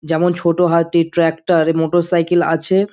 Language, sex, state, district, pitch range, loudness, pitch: Bengali, male, West Bengal, Dakshin Dinajpur, 165-175 Hz, -15 LUFS, 170 Hz